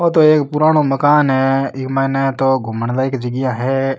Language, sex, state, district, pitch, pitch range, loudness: Rajasthani, male, Rajasthan, Nagaur, 135 Hz, 130-145 Hz, -15 LUFS